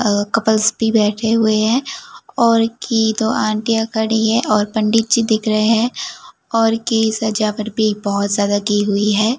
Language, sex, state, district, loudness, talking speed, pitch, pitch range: Hindi, female, Gujarat, Gandhinagar, -16 LUFS, 170 wpm, 220 Hz, 215-230 Hz